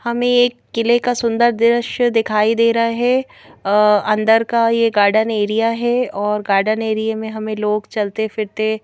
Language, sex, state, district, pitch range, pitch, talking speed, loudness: Hindi, female, Madhya Pradesh, Bhopal, 215-235 Hz, 220 Hz, 170 wpm, -16 LUFS